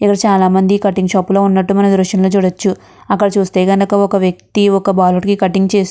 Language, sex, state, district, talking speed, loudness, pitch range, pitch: Telugu, female, Andhra Pradesh, Guntur, 195 wpm, -13 LUFS, 190-200 Hz, 195 Hz